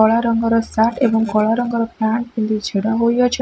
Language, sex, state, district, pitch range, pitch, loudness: Odia, female, Odisha, Khordha, 220-235 Hz, 230 Hz, -17 LUFS